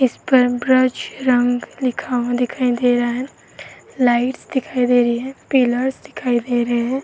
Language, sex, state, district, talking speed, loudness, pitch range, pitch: Hindi, female, Uttar Pradesh, Varanasi, 155 wpm, -18 LUFS, 245-260 Hz, 250 Hz